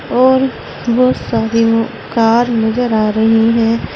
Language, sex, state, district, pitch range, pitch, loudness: Hindi, female, Uttar Pradesh, Saharanpur, 225-245 Hz, 230 Hz, -13 LUFS